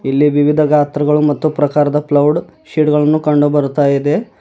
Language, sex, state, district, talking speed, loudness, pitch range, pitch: Kannada, male, Karnataka, Bidar, 150 wpm, -13 LUFS, 145-150 Hz, 150 Hz